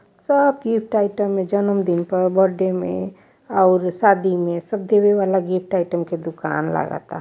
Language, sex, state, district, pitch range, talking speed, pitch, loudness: Awadhi, female, Uttar Pradesh, Varanasi, 175-205 Hz, 160 wpm, 190 Hz, -19 LUFS